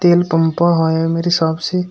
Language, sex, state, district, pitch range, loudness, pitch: Hindi, male, Uttar Pradesh, Shamli, 165-175 Hz, -15 LUFS, 165 Hz